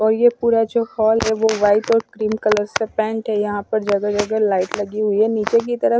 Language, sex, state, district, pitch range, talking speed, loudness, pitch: Hindi, female, Himachal Pradesh, Shimla, 205-225 Hz, 250 wpm, -18 LUFS, 215 Hz